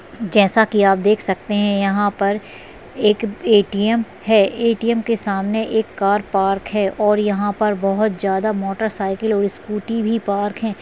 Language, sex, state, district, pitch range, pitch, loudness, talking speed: Hindi, female, Maharashtra, Sindhudurg, 200-220 Hz, 210 Hz, -18 LUFS, 155 wpm